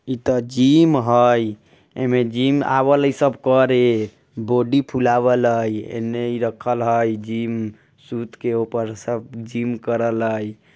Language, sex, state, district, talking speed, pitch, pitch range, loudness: Bajjika, male, Bihar, Vaishali, 115 wpm, 120 Hz, 115-130 Hz, -19 LUFS